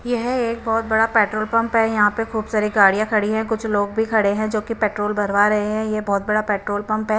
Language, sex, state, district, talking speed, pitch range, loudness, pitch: Hindi, female, Punjab, Kapurthala, 260 wpm, 210-225 Hz, -19 LUFS, 215 Hz